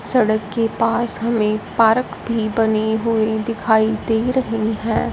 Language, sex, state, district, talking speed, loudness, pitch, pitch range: Hindi, female, Punjab, Fazilka, 140 wpm, -18 LUFS, 225 Hz, 220-230 Hz